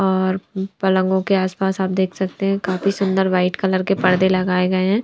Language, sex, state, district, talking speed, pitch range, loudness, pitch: Hindi, female, Himachal Pradesh, Shimla, 200 wpm, 185-195 Hz, -19 LUFS, 190 Hz